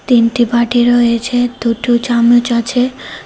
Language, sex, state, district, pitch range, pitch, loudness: Bengali, female, Tripura, West Tripura, 235-245 Hz, 240 Hz, -13 LUFS